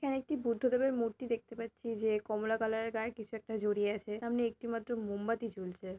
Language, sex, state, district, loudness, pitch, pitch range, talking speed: Bengali, female, West Bengal, North 24 Parganas, -36 LUFS, 225 Hz, 215-235 Hz, 170 wpm